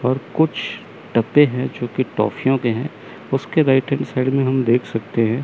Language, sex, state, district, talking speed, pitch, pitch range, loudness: Hindi, male, Chandigarh, Chandigarh, 200 wpm, 130 Hz, 115-135 Hz, -19 LUFS